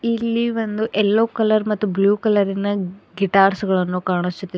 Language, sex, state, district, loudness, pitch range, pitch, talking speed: Kannada, female, Karnataka, Bidar, -19 LUFS, 195-220 Hz, 205 Hz, 130 wpm